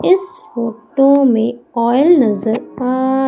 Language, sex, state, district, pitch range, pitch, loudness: Hindi, female, Madhya Pradesh, Umaria, 230-275 Hz, 255 Hz, -14 LUFS